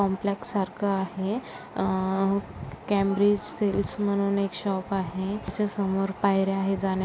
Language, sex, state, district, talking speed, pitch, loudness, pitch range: Marathi, female, Maharashtra, Sindhudurg, 130 wpm, 195 Hz, -27 LUFS, 195-200 Hz